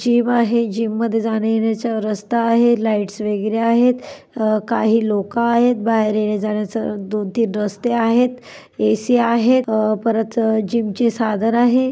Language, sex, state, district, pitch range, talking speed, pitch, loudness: Marathi, female, Maharashtra, Dhule, 215-235 Hz, 140 wpm, 225 Hz, -18 LUFS